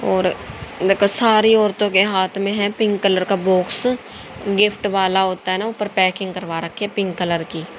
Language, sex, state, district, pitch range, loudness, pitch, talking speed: Hindi, female, Haryana, Jhajjar, 185-210 Hz, -18 LUFS, 195 Hz, 190 wpm